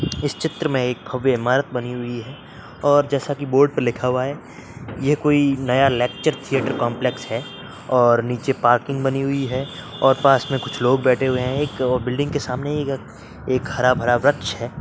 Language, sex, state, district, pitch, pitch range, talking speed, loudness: Hindi, male, Uttar Pradesh, Varanasi, 130 Hz, 125-140 Hz, 190 wpm, -20 LUFS